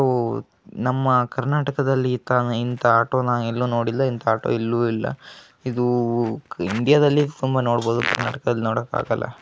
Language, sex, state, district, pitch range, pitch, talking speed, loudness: Kannada, male, Karnataka, Gulbarga, 115-130 Hz, 120 Hz, 115 wpm, -21 LUFS